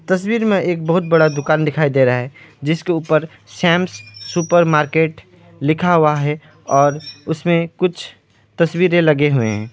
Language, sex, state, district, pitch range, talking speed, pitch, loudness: Hindi, male, West Bengal, Alipurduar, 140-170 Hz, 150 wpm, 155 Hz, -16 LUFS